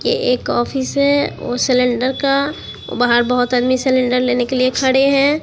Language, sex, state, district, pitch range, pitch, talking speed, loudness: Hindi, female, Bihar, Katihar, 250-275 Hz, 255 Hz, 165 wpm, -16 LUFS